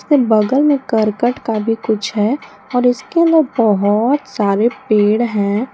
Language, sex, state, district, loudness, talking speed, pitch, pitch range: Hindi, female, Jharkhand, Palamu, -15 LUFS, 155 wpm, 230 Hz, 210-265 Hz